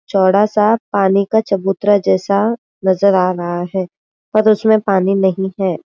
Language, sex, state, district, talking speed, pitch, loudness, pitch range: Hindi, female, Maharashtra, Aurangabad, 150 wpm, 195 Hz, -15 LUFS, 190-210 Hz